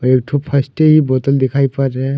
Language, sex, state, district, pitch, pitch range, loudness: Hindi, male, Jharkhand, Deoghar, 135 Hz, 130-140 Hz, -14 LUFS